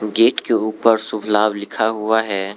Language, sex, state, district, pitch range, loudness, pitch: Hindi, male, Arunachal Pradesh, Lower Dibang Valley, 105-110 Hz, -18 LUFS, 110 Hz